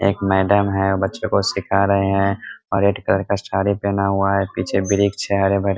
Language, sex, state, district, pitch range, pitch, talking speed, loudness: Hindi, male, Bihar, Muzaffarpur, 95-100 Hz, 100 Hz, 240 wpm, -19 LUFS